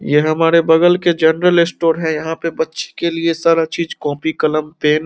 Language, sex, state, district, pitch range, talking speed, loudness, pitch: Hindi, male, Bihar, Samastipur, 155-170 Hz, 215 wpm, -15 LUFS, 160 Hz